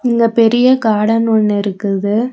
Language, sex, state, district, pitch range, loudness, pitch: Tamil, female, Tamil Nadu, Nilgiris, 210-235 Hz, -13 LUFS, 225 Hz